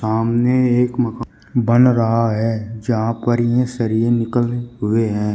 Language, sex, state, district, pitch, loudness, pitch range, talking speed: Hindi, male, Uttar Pradesh, Shamli, 115 Hz, -18 LUFS, 115-120 Hz, 135 wpm